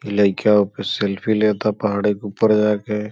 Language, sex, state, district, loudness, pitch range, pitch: Bhojpuri, male, Uttar Pradesh, Gorakhpur, -19 LUFS, 100-105 Hz, 105 Hz